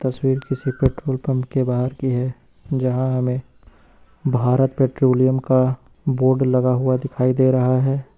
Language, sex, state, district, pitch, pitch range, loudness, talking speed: Hindi, male, Uttar Pradesh, Lucknow, 130 Hz, 130-135 Hz, -20 LUFS, 145 wpm